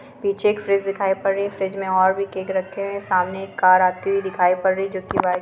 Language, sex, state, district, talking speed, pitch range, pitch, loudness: Hindi, female, Andhra Pradesh, Visakhapatnam, 300 wpm, 185-200 Hz, 195 Hz, -21 LUFS